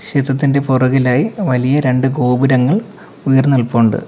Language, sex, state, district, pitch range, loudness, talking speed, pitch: Malayalam, male, Kerala, Kollam, 125-140 Hz, -14 LUFS, 105 wpm, 135 Hz